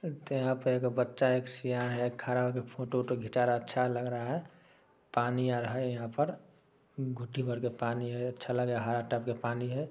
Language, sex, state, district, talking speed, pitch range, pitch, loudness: Maithili, male, Bihar, Samastipur, 230 wpm, 120-130 Hz, 125 Hz, -33 LUFS